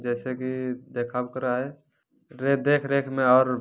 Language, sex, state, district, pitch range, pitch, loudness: Hindi, male, Bihar, Jamui, 125-140 Hz, 130 Hz, -25 LUFS